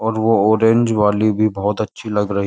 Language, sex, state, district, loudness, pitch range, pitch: Hindi, male, Uttar Pradesh, Jyotiba Phule Nagar, -16 LUFS, 105-110 Hz, 110 Hz